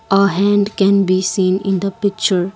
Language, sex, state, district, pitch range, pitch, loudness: English, female, Assam, Kamrup Metropolitan, 190-200 Hz, 195 Hz, -15 LUFS